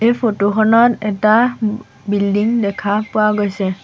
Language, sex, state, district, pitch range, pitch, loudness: Assamese, female, Assam, Sonitpur, 205-225 Hz, 215 Hz, -16 LUFS